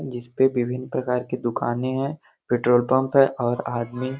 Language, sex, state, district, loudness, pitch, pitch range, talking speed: Hindi, male, Bihar, Gopalganj, -23 LUFS, 125 Hz, 120-130 Hz, 170 wpm